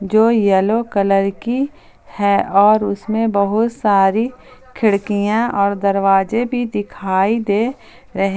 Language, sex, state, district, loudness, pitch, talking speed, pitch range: Hindi, female, Jharkhand, Palamu, -16 LUFS, 210 Hz, 115 wpm, 200-230 Hz